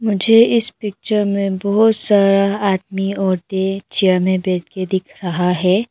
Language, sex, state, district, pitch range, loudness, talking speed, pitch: Hindi, female, Arunachal Pradesh, Longding, 185-210 Hz, -16 LUFS, 150 wpm, 195 Hz